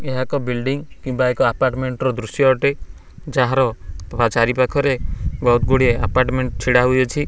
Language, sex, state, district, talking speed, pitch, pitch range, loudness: Odia, male, Odisha, Khordha, 140 wpm, 130 Hz, 120-135 Hz, -18 LUFS